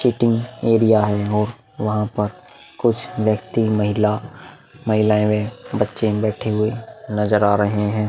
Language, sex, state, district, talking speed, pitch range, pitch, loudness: Hindi, male, Uttar Pradesh, Muzaffarnagar, 125 wpm, 105-115 Hz, 110 Hz, -20 LUFS